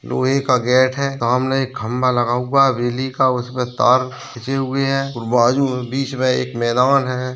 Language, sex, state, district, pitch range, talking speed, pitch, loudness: Hindi, male, Bihar, Bhagalpur, 125-135 Hz, 185 wpm, 130 Hz, -18 LUFS